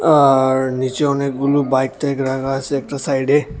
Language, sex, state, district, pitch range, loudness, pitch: Bengali, male, Tripura, West Tripura, 130-145 Hz, -17 LUFS, 135 Hz